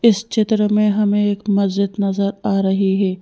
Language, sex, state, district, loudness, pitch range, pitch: Hindi, female, Madhya Pradesh, Bhopal, -17 LUFS, 195-210 Hz, 200 Hz